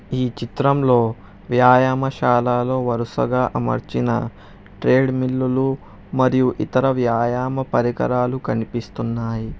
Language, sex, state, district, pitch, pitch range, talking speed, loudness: Telugu, male, Telangana, Hyderabad, 125 Hz, 115-130 Hz, 70 wpm, -19 LUFS